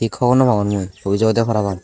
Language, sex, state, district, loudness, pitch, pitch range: Chakma, male, Tripura, Dhalai, -17 LUFS, 110 Hz, 100-115 Hz